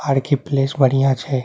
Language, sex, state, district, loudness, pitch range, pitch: Maithili, male, Bihar, Saharsa, -18 LUFS, 130-140 Hz, 135 Hz